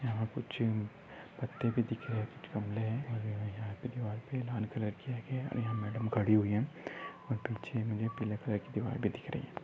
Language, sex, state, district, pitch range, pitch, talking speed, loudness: Hindi, male, Maharashtra, Dhule, 110-125 Hz, 115 Hz, 230 wpm, -37 LUFS